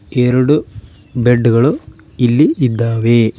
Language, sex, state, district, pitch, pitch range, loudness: Kannada, male, Karnataka, Koppal, 120 Hz, 110-125 Hz, -13 LUFS